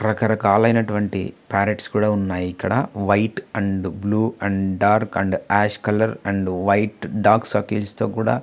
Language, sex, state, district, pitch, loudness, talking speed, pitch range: Telugu, male, Andhra Pradesh, Visakhapatnam, 105 Hz, -20 LUFS, 140 wpm, 100-110 Hz